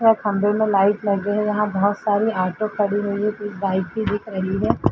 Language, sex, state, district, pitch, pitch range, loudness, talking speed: Hindi, female, Uttar Pradesh, Jalaun, 205 Hz, 200-210 Hz, -21 LUFS, 230 wpm